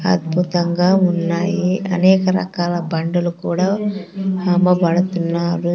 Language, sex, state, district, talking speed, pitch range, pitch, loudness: Telugu, female, Andhra Pradesh, Sri Satya Sai, 75 wpm, 175-190 Hz, 180 Hz, -17 LUFS